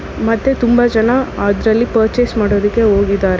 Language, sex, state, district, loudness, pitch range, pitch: Kannada, female, Karnataka, Bangalore, -14 LUFS, 205-240 Hz, 220 Hz